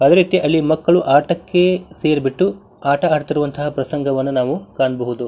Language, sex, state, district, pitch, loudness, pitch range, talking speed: Kannada, male, Karnataka, Bijapur, 150 Hz, -17 LUFS, 135-175 Hz, 125 wpm